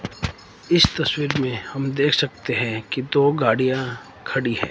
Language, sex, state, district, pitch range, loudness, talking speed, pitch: Hindi, male, Himachal Pradesh, Shimla, 110-145 Hz, -21 LUFS, 155 wpm, 130 Hz